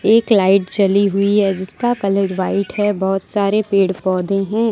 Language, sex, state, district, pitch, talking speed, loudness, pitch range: Hindi, female, Jharkhand, Deoghar, 200 Hz, 180 wpm, -16 LUFS, 190-205 Hz